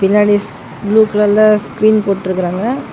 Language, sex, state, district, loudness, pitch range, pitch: Tamil, male, Tamil Nadu, Namakkal, -13 LUFS, 195-215 Hz, 205 Hz